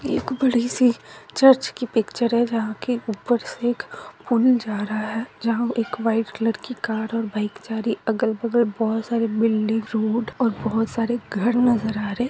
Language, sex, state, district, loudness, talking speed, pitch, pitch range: Hindi, female, Chhattisgarh, Raigarh, -22 LUFS, 195 wpm, 230 Hz, 220-240 Hz